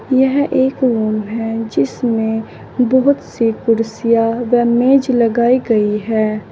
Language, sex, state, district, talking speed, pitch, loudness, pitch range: Hindi, female, Uttar Pradesh, Saharanpur, 120 wpm, 230 Hz, -15 LUFS, 220-250 Hz